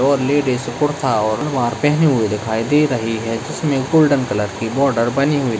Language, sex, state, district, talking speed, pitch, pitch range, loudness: Hindi, male, Uttarakhand, Uttarkashi, 205 wpm, 130 Hz, 115-145 Hz, -17 LUFS